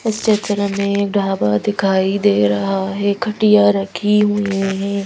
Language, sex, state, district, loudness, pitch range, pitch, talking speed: Hindi, female, Madhya Pradesh, Bhopal, -16 LUFS, 195-205 Hz, 200 Hz, 140 wpm